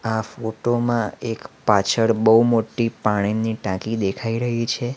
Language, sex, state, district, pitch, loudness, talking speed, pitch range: Gujarati, male, Gujarat, Valsad, 115 Hz, -21 LUFS, 130 wpm, 110-120 Hz